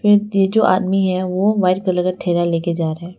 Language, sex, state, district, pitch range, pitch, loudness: Hindi, female, Arunachal Pradesh, Lower Dibang Valley, 175-195 Hz, 185 Hz, -17 LUFS